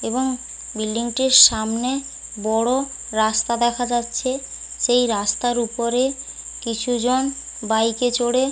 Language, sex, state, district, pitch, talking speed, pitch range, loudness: Bengali, female, West Bengal, Paschim Medinipur, 240 Hz, 115 wpm, 225-260 Hz, -20 LUFS